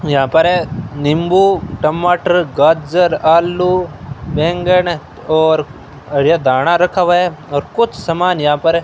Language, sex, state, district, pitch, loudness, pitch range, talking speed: Hindi, male, Rajasthan, Bikaner, 165 Hz, -14 LUFS, 150-180 Hz, 130 wpm